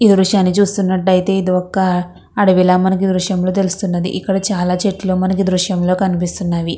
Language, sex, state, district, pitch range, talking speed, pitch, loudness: Telugu, female, Andhra Pradesh, Krishna, 180-195 Hz, 150 wpm, 185 Hz, -15 LUFS